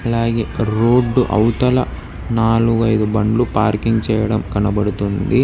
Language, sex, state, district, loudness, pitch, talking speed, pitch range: Telugu, male, Telangana, Hyderabad, -17 LUFS, 110 Hz, 100 wpm, 105-115 Hz